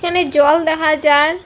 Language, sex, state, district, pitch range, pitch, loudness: Bengali, female, Assam, Hailakandi, 295-340 Hz, 310 Hz, -13 LUFS